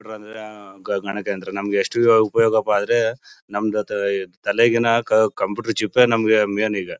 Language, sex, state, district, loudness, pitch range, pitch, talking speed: Kannada, male, Karnataka, Bellary, -19 LUFS, 100-115 Hz, 110 Hz, 135 wpm